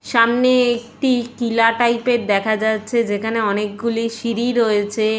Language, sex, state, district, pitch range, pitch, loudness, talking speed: Bengali, female, West Bengal, Jalpaiguri, 215-240 Hz, 230 Hz, -18 LUFS, 125 wpm